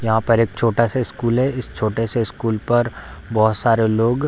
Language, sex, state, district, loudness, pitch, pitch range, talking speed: Hindi, male, Bihar, Darbhanga, -19 LUFS, 115 Hz, 110-120 Hz, 210 wpm